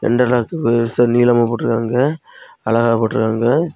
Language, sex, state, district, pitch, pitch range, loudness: Tamil, male, Tamil Nadu, Kanyakumari, 120 Hz, 115-125 Hz, -16 LUFS